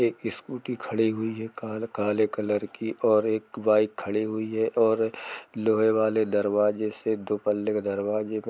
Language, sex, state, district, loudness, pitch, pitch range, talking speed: Hindi, male, Jharkhand, Jamtara, -26 LUFS, 110 Hz, 105-110 Hz, 170 wpm